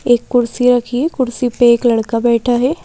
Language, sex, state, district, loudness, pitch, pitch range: Hindi, female, Madhya Pradesh, Bhopal, -14 LUFS, 245 Hz, 235-250 Hz